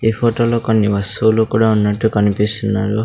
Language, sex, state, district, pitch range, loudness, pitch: Telugu, male, Andhra Pradesh, Sri Satya Sai, 105-110 Hz, -15 LUFS, 110 Hz